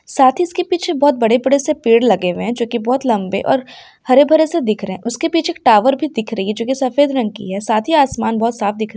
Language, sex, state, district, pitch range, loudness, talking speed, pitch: Hindi, female, West Bengal, Dakshin Dinajpur, 220-290 Hz, -15 LUFS, 270 wpm, 245 Hz